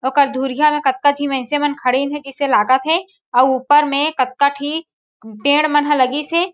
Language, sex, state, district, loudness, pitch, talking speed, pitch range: Chhattisgarhi, female, Chhattisgarh, Jashpur, -16 LUFS, 285 Hz, 190 wpm, 265-295 Hz